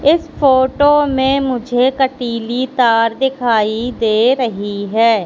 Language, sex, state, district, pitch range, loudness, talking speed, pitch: Hindi, female, Madhya Pradesh, Katni, 230-265 Hz, -15 LUFS, 115 wpm, 250 Hz